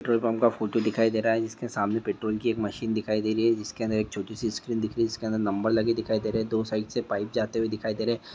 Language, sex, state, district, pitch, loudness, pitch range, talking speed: Hindi, male, Andhra Pradesh, Guntur, 110 Hz, -27 LUFS, 110-115 Hz, 315 wpm